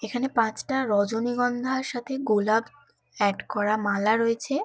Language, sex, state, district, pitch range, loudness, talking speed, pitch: Bengali, female, West Bengal, Kolkata, 215-260 Hz, -25 LUFS, 115 wpm, 230 Hz